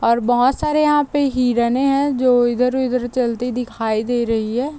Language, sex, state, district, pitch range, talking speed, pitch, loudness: Hindi, female, Uttar Pradesh, Deoria, 240-270 Hz, 175 wpm, 250 Hz, -18 LUFS